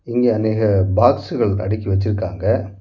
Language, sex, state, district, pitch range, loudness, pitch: Tamil, male, Tamil Nadu, Kanyakumari, 95-110 Hz, -18 LUFS, 105 Hz